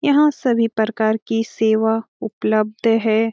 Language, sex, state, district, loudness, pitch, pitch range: Hindi, female, Bihar, Jamui, -18 LUFS, 225 Hz, 220-230 Hz